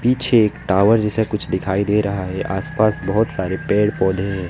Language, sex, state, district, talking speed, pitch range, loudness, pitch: Hindi, male, West Bengal, Alipurduar, 215 wpm, 95-110 Hz, -18 LUFS, 105 Hz